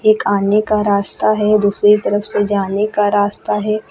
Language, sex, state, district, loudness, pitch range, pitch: Hindi, female, Uttar Pradesh, Lucknow, -15 LUFS, 205-215 Hz, 210 Hz